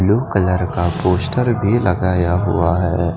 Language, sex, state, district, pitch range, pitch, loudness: Hindi, male, Punjab, Fazilka, 90-100 Hz, 90 Hz, -17 LUFS